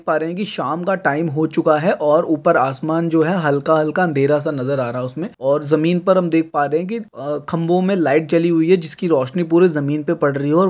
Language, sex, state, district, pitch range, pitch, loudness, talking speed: Hindi, male, Uttarakhand, Tehri Garhwal, 150-175 Hz, 160 Hz, -17 LUFS, 260 wpm